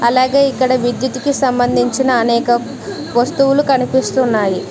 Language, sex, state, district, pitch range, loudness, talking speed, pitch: Telugu, female, Telangana, Mahabubabad, 240-265 Hz, -14 LUFS, 100 wpm, 255 Hz